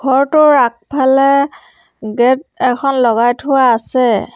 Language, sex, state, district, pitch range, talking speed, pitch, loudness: Assamese, female, Assam, Sonitpur, 240-275 Hz, 95 wpm, 260 Hz, -12 LUFS